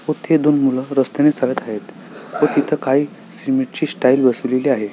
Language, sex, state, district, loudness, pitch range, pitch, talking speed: Marathi, male, Maharashtra, Solapur, -17 LUFS, 130-155 Hz, 145 Hz, 170 wpm